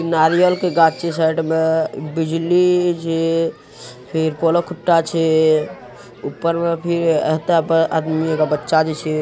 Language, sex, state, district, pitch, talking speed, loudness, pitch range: Hindi, male, Bihar, Araria, 165 Hz, 135 wpm, -17 LUFS, 155-170 Hz